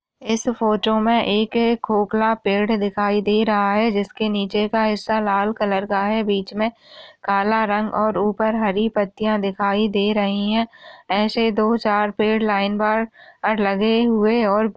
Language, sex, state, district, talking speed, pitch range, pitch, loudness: Hindi, female, Maharashtra, Solapur, 160 wpm, 205-220 Hz, 215 Hz, -20 LUFS